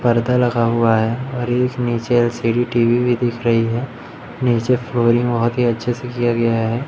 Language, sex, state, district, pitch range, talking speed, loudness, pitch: Hindi, male, Madhya Pradesh, Umaria, 115-120 Hz, 190 wpm, -18 LUFS, 120 Hz